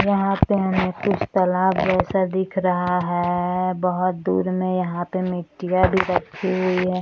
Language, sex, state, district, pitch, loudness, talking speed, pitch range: Hindi, female, Maharashtra, Nagpur, 185 Hz, -21 LUFS, 160 wpm, 180-190 Hz